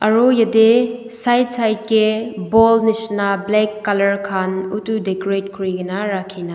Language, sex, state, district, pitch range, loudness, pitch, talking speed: Nagamese, female, Nagaland, Dimapur, 195-225 Hz, -17 LUFS, 215 Hz, 135 wpm